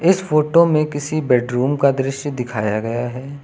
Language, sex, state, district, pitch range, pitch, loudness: Hindi, male, Uttar Pradesh, Lucknow, 125-150 Hz, 140 Hz, -18 LUFS